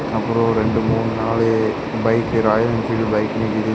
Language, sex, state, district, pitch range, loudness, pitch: Tamil, male, Tamil Nadu, Kanyakumari, 110-115 Hz, -19 LUFS, 115 Hz